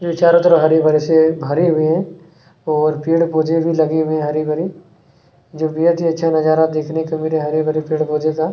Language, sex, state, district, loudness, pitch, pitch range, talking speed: Hindi, male, Chhattisgarh, Kabirdham, -16 LUFS, 160 Hz, 155-165 Hz, 210 wpm